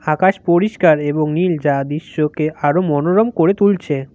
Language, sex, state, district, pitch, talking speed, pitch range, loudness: Bengali, male, West Bengal, Cooch Behar, 155 Hz, 145 wpm, 150-180 Hz, -16 LUFS